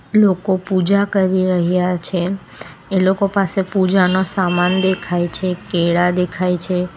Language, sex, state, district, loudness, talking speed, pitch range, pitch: Gujarati, female, Gujarat, Valsad, -17 LUFS, 140 wpm, 180-190 Hz, 185 Hz